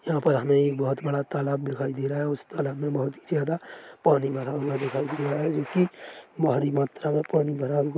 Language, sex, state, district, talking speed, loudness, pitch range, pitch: Hindi, male, Chhattisgarh, Korba, 240 wpm, -26 LUFS, 140-150 Hz, 145 Hz